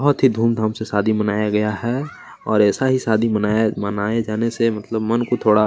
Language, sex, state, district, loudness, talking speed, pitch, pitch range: Hindi, male, Chhattisgarh, Kabirdham, -19 LUFS, 220 wpm, 110 Hz, 105-115 Hz